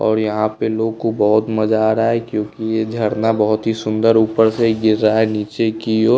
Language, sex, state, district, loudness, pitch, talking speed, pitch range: Hindi, male, Bihar, West Champaran, -17 LUFS, 110 Hz, 235 wpm, 110-115 Hz